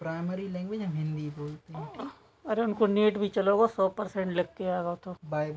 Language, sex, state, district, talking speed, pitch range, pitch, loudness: Hindi, female, Chhattisgarh, Bastar, 195 wpm, 160-205 Hz, 185 Hz, -30 LUFS